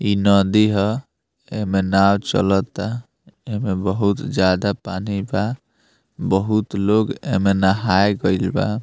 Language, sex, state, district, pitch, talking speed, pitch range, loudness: Bhojpuri, male, Bihar, Muzaffarpur, 100 Hz, 145 wpm, 95-105 Hz, -19 LUFS